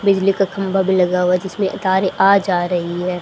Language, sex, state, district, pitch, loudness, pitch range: Hindi, female, Haryana, Charkhi Dadri, 190 Hz, -17 LUFS, 180-195 Hz